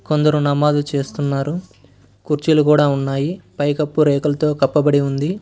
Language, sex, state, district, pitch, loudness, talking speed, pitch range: Telugu, male, Karnataka, Bangalore, 145 Hz, -17 LUFS, 110 wpm, 140-150 Hz